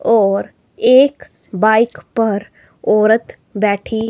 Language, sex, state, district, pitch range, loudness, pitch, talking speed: Hindi, female, Himachal Pradesh, Shimla, 210-230 Hz, -15 LUFS, 220 Hz, 90 wpm